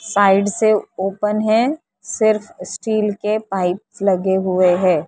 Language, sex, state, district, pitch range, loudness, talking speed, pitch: Hindi, female, Maharashtra, Mumbai Suburban, 190-215 Hz, -18 LUFS, 130 wpm, 205 Hz